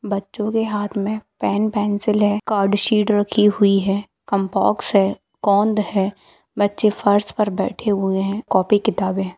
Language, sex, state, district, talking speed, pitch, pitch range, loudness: Hindi, female, Bihar, Muzaffarpur, 160 wpm, 205 Hz, 200-210 Hz, -19 LUFS